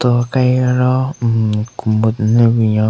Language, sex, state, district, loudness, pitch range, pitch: Rengma, male, Nagaland, Kohima, -15 LUFS, 110-125 Hz, 115 Hz